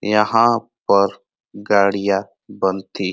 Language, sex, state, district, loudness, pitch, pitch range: Hindi, male, Uttar Pradesh, Ghazipur, -18 LUFS, 100 Hz, 100-105 Hz